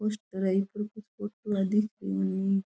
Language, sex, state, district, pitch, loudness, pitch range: Rajasthani, female, Rajasthan, Churu, 205 Hz, -30 LUFS, 195-215 Hz